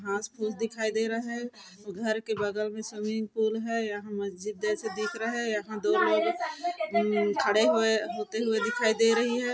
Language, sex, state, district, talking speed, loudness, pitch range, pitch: Chhattisgarhi, female, Chhattisgarh, Korba, 190 wpm, -29 LUFS, 210-230 Hz, 220 Hz